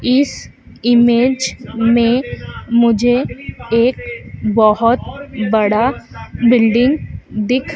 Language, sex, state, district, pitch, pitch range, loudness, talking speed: Hindi, female, Madhya Pradesh, Dhar, 235 Hz, 225-250 Hz, -15 LUFS, 70 wpm